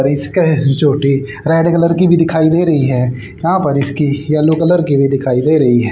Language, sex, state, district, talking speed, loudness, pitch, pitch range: Hindi, male, Haryana, Charkhi Dadri, 235 wpm, -13 LUFS, 145 Hz, 140-165 Hz